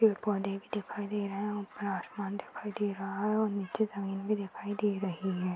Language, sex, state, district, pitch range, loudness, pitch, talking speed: Hindi, female, Uttar Pradesh, Hamirpur, 195-210 Hz, -34 LUFS, 205 Hz, 225 wpm